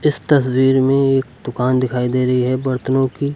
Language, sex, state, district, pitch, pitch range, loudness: Hindi, male, Uttar Pradesh, Lucknow, 130 Hz, 125-135 Hz, -17 LUFS